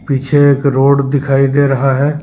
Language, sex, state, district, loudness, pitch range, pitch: Hindi, male, Jharkhand, Deoghar, -12 LUFS, 135-145 Hz, 140 Hz